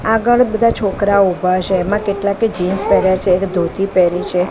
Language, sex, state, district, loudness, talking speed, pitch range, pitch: Gujarati, female, Gujarat, Gandhinagar, -15 LUFS, 185 wpm, 185-205 Hz, 195 Hz